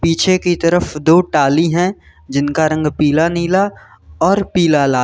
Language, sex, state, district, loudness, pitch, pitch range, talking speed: Hindi, male, Uttar Pradesh, Lalitpur, -15 LUFS, 165 Hz, 150-180 Hz, 155 wpm